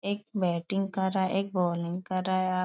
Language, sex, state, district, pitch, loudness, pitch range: Hindi, female, Uttar Pradesh, Etah, 185 Hz, -29 LUFS, 185-195 Hz